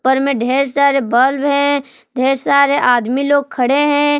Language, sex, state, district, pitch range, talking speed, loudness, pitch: Hindi, female, Jharkhand, Palamu, 260-280 Hz, 170 wpm, -14 LUFS, 275 Hz